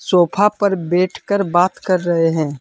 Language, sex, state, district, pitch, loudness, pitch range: Hindi, male, Jharkhand, Deoghar, 180 Hz, -17 LUFS, 170-195 Hz